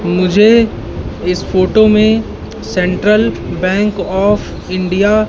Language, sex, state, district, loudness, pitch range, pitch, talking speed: Hindi, male, Madhya Pradesh, Katni, -13 LUFS, 185-215 Hz, 200 Hz, 100 wpm